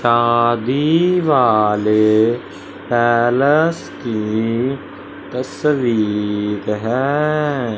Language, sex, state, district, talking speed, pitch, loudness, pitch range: Hindi, male, Punjab, Fazilka, 45 wpm, 120 Hz, -16 LUFS, 110-140 Hz